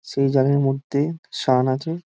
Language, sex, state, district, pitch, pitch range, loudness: Bengali, male, West Bengal, Dakshin Dinajpur, 140 Hz, 135-150 Hz, -21 LUFS